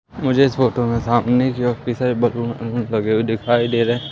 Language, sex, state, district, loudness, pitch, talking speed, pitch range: Hindi, male, Madhya Pradesh, Umaria, -19 LUFS, 120 Hz, 205 wpm, 115-125 Hz